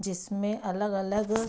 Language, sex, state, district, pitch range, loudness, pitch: Hindi, female, Bihar, Saharsa, 195-215 Hz, -30 LUFS, 205 Hz